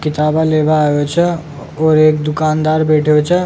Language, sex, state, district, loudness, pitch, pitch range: Rajasthani, male, Rajasthan, Nagaur, -13 LUFS, 155 Hz, 150-155 Hz